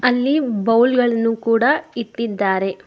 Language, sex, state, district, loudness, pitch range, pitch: Kannada, female, Karnataka, Bangalore, -18 LUFS, 225-250 Hz, 230 Hz